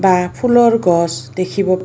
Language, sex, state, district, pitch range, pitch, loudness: Assamese, female, Assam, Kamrup Metropolitan, 175-210 Hz, 185 Hz, -15 LUFS